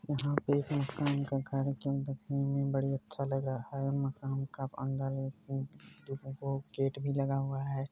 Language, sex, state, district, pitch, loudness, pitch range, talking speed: Hindi, male, Bihar, Purnia, 135 Hz, -35 LUFS, 135-140 Hz, 175 wpm